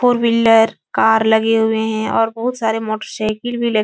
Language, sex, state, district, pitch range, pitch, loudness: Hindi, female, Uttar Pradesh, Etah, 220-230 Hz, 225 Hz, -16 LUFS